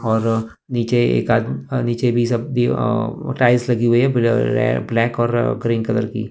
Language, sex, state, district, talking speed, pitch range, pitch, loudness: Hindi, male, Maharashtra, Mumbai Suburban, 160 wpm, 115-120 Hz, 120 Hz, -18 LUFS